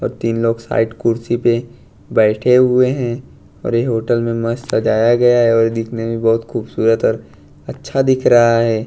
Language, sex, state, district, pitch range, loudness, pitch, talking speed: Hindi, male, Bihar, West Champaran, 115-120 Hz, -15 LUFS, 115 Hz, 180 wpm